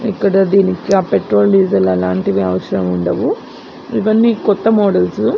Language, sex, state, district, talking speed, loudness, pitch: Telugu, female, Andhra Pradesh, Anantapur, 135 wpm, -14 LUFS, 180 Hz